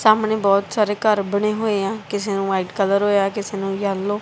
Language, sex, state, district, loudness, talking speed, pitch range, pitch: Punjabi, female, Punjab, Kapurthala, -20 LUFS, 225 wpm, 195-210 Hz, 200 Hz